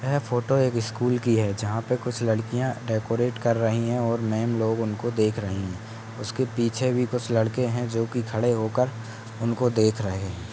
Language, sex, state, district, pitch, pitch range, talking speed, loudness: Hindi, male, Uttar Pradesh, Gorakhpur, 115 Hz, 110-120 Hz, 215 wpm, -25 LUFS